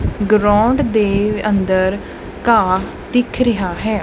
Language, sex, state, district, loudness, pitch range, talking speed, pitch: Punjabi, male, Punjab, Kapurthala, -16 LUFS, 195-230 Hz, 105 wpm, 210 Hz